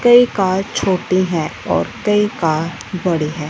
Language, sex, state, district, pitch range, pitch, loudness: Hindi, female, Punjab, Fazilka, 165-210 Hz, 185 Hz, -17 LUFS